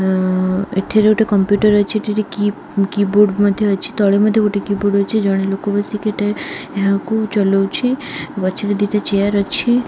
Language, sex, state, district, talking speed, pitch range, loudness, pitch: Odia, female, Odisha, Khordha, 165 wpm, 195-215 Hz, -16 LUFS, 205 Hz